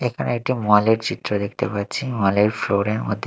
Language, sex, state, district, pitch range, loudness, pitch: Bengali, male, Odisha, Malkangiri, 100-120 Hz, -21 LUFS, 105 Hz